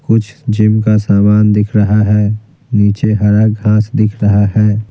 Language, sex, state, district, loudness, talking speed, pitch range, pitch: Hindi, male, Bihar, Patna, -11 LUFS, 160 wpm, 105-110 Hz, 105 Hz